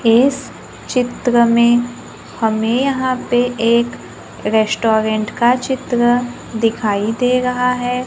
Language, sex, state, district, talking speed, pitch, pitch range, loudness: Hindi, female, Maharashtra, Gondia, 105 wpm, 240 Hz, 225-250 Hz, -16 LUFS